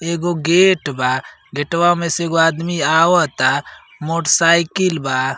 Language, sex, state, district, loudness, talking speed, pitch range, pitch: Bhojpuri, male, Uttar Pradesh, Ghazipur, -16 LUFS, 120 wpm, 145-170 Hz, 165 Hz